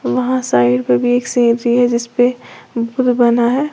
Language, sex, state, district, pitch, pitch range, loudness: Hindi, female, Uttar Pradesh, Lalitpur, 240 Hz, 235-250 Hz, -15 LUFS